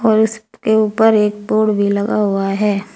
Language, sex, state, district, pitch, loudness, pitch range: Hindi, female, Uttar Pradesh, Saharanpur, 210 Hz, -15 LUFS, 205-220 Hz